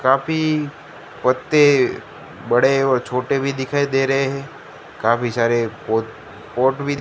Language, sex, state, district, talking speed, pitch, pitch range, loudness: Hindi, male, Gujarat, Gandhinagar, 130 wpm, 135 Hz, 120-140 Hz, -19 LUFS